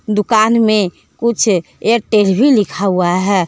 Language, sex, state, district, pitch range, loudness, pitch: Hindi, female, Jharkhand, Deoghar, 190-225 Hz, -14 LUFS, 210 Hz